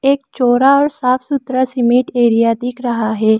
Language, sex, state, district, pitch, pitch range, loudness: Hindi, female, Arunachal Pradesh, Lower Dibang Valley, 250 Hz, 235-270 Hz, -14 LUFS